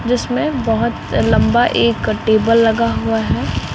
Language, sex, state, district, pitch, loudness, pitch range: Hindi, female, Bihar, West Champaran, 230 Hz, -15 LUFS, 220-240 Hz